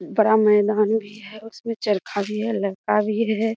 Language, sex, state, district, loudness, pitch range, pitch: Hindi, female, Bihar, Kishanganj, -21 LUFS, 210-220 Hz, 215 Hz